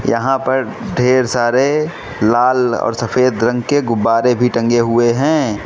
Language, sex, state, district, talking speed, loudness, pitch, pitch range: Hindi, male, Mizoram, Aizawl, 150 wpm, -15 LUFS, 125 Hz, 115-130 Hz